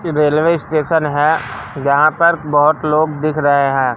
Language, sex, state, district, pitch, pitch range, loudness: Hindi, male, Madhya Pradesh, Katni, 150 Hz, 140-155 Hz, -14 LUFS